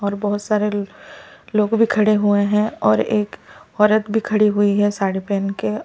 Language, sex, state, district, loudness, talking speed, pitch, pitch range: Hindi, male, Delhi, New Delhi, -18 LUFS, 185 wpm, 205 Hz, 200-210 Hz